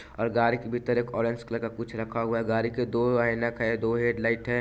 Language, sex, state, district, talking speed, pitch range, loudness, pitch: Hindi, male, Bihar, Vaishali, 270 wpm, 115-120 Hz, -27 LUFS, 115 Hz